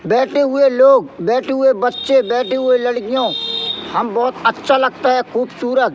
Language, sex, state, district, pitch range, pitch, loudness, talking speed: Hindi, male, Madhya Pradesh, Katni, 245-270 Hz, 255 Hz, -15 LUFS, 150 wpm